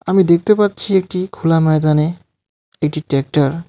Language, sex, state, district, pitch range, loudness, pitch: Bengali, male, West Bengal, Alipurduar, 155-190 Hz, -16 LUFS, 165 Hz